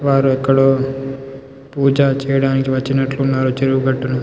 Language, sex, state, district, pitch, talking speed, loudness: Telugu, male, Telangana, Nalgonda, 135 Hz, 130 wpm, -16 LUFS